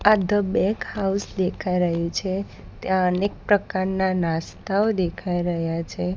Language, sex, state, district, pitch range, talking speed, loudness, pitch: Gujarati, female, Gujarat, Gandhinagar, 175-200 Hz, 135 wpm, -23 LUFS, 185 Hz